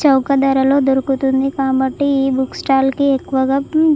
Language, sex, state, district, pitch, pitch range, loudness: Telugu, female, Andhra Pradesh, Chittoor, 270 Hz, 265-280 Hz, -15 LUFS